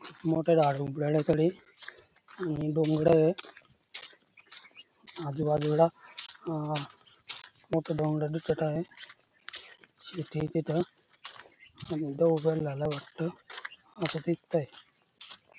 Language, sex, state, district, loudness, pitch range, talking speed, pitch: Marathi, male, Maharashtra, Dhule, -30 LUFS, 150-165 Hz, 55 wpm, 160 Hz